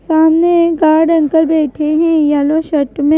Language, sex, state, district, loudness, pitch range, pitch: Hindi, female, Madhya Pradesh, Bhopal, -12 LUFS, 300-320 Hz, 315 Hz